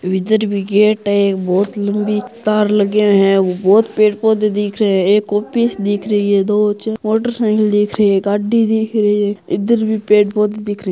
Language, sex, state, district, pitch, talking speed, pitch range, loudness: Hindi, male, Rajasthan, Churu, 210 Hz, 215 wpm, 200-215 Hz, -15 LUFS